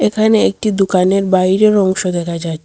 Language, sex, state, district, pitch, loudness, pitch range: Bengali, female, Assam, Hailakandi, 190 Hz, -13 LUFS, 180-210 Hz